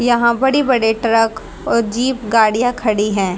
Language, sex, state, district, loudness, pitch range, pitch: Hindi, female, Haryana, Charkhi Dadri, -15 LUFS, 220-245 Hz, 230 Hz